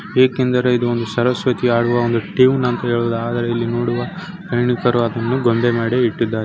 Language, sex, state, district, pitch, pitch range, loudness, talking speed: Kannada, male, Karnataka, Chamarajanagar, 120 Hz, 115-125 Hz, -17 LUFS, 150 wpm